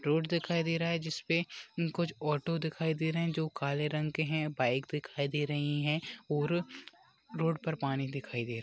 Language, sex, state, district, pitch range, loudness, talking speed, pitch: Hindi, male, Goa, North and South Goa, 145-165 Hz, -33 LUFS, 210 wpm, 155 Hz